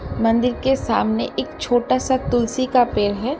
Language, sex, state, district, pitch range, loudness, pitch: Hindi, female, Uttar Pradesh, Jalaun, 230-260 Hz, -20 LUFS, 245 Hz